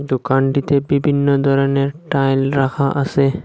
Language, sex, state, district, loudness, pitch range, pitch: Bengali, male, Assam, Hailakandi, -17 LUFS, 135-140 Hz, 140 Hz